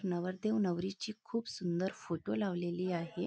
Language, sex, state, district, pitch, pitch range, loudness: Marathi, female, Maharashtra, Nagpur, 185 Hz, 175-205 Hz, -37 LUFS